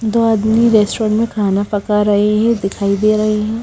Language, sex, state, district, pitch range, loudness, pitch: Hindi, female, Himachal Pradesh, Shimla, 205-225 Hz, -14 LUFS, 215 Hz